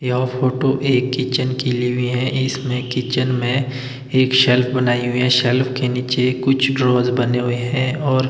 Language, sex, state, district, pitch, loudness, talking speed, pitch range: Hindi, male, Himachal Pradesh, Shimla, 130 Hz, -18 LUFS, 180 wpm, 125-130 Hz